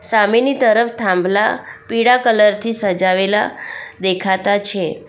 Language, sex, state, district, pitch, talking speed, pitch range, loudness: Gujarati, female, Gujarat, Valsad, 210 Hz, 105 wpm, 190-230 Hz, -15 LUFS